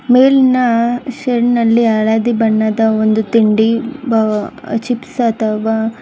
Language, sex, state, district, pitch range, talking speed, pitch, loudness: Kannada, female, Karnataka, Bangalore, 220-245 Hz, 90 wpm, 230 Hz, -14 LUFS